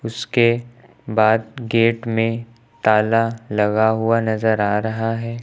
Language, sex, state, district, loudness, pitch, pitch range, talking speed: Hindi, male, Uttar Pradesh, Lucknow, -19 LUFS, 115 Hz, 110-115 Hz, 120 wpm